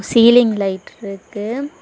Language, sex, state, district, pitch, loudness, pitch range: Tamil, female, Tamil Nadu, Kanyakumari, 225 Hz, -15 LUFS, 200-240 Hz